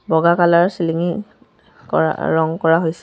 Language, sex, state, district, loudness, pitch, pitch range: Assamese, female, Assam, Sonitpur, -17 LUFS, 170 Hz, 165-180 Hz